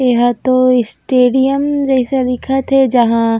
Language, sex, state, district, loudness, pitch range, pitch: Chhattisgarhi, female, Chhattisgarh, Raigarh, -13 LUFS, 245-270 Hz, 255 Hz